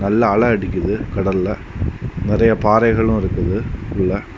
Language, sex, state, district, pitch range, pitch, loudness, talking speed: Tamil, male, Tamil Nadu, Kanyakumari, 95-110 Hz, 105 Hz, -18 LUFS, 110 wpm